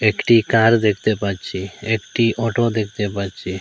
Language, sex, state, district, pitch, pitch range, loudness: Bengali, male, Assam, Hailakandi, 110 Hz, 100-115 Hz, -19 LUFS